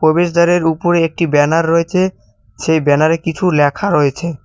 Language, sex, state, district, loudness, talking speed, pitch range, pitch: Bengali, male, West Bengal, Cooch Behar, -14 LUFS, 135 wpm, 145-170 Hz, 165 Hz